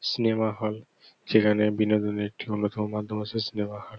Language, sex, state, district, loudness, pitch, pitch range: Bengali, male, West Bengal, North 24 Parganas, -27 LUFS, 105 Hz, 105-110 Hz